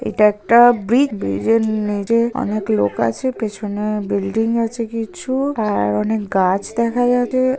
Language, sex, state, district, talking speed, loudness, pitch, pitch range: Bengali, female, West Bengal, Kolkata, 140 wpm, -18 LUFS, 220 Hz, 205-235 Hz